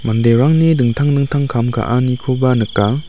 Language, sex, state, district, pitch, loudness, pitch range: Garo, male, Meghalaya, West Garo Hills, 125 Hz, -15 LUFS, 115-140 Hz